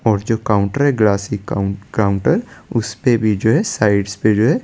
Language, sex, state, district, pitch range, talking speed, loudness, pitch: Hindi, male, Chandigarh, Chandigarh, 100-115 Hz, 195 wpm, -17 LUFS, 110 Hz